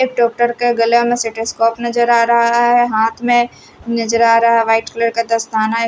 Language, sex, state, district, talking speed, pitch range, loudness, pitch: Hindi, female, Haryana, Rohtak, 205 wpm, 230-240 Hz, -14 LUFS, 230 Hz